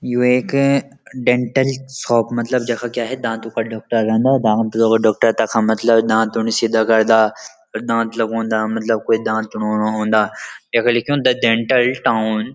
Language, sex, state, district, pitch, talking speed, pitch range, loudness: Garhwali, male, Uttarakhand, Uttarkashi, 115 Hz, 165 wpm, 110-125 Hz, -17 LUFS